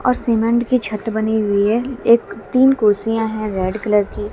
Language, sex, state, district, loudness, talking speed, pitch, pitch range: Hindi, female, Haryana, Jhajjar, -17 LUFS, 195 wpm, 220 Hz, 210-235 Hz